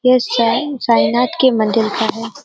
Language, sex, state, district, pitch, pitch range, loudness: Hindi, female, Uttar Pradesh, Varanasi, 235 Hz, 230-255 Hz, -15 LUFS